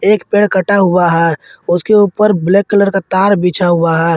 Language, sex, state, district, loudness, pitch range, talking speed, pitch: Hindi, male, Jharkhand, Ranchi, -11 LUFS, 175-205 Hz, 200 wpm, 190 Hz